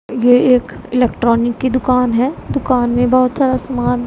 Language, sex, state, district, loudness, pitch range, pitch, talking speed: Hindi, female, Punjab, Pathankot, -14 LUFS, 245-255 Hz, 250 Hz, 160 wpm